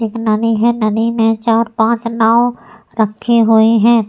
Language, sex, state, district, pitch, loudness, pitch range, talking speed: Hindi, female, Uttar Pradesh, Etah, 225 Hz, -13 LUFS, 225-235 Hz, 160 wpm